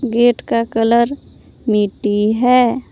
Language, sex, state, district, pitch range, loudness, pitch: Hindi, female, Jharkhand, Palamu, 220-245 Hz, -15 LUFS, 235 Hz